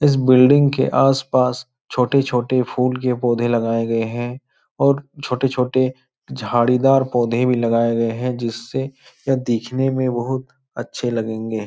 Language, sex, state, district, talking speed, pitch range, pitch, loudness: Hindi, male, Uttar Pradesh, Etah, 135 wpm, 120-130 Hz, 125 Hz, -19 LUFS